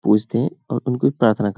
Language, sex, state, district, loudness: Hindi, male, Uttar Pradesh, Hamirpur, -20 LUFS